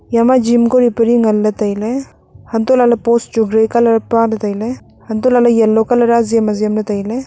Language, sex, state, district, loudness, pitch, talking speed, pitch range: Wancho, female, Arunachal Pradesh, Longding, -13 LUFS, 230 Hz, 190 wpm, 220-240 Hz